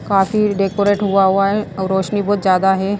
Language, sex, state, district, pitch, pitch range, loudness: Hindi, female, Himachal Pradesh, Shimla, 195 Hz, 190-205 Hz, -16 LUFS